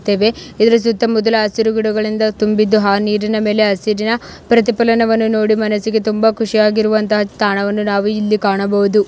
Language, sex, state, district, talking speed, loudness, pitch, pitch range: Kannada, female, Karnataka, Mysore, 140 wpm, -15 LUFS, 215 Hz, 210-220 Hz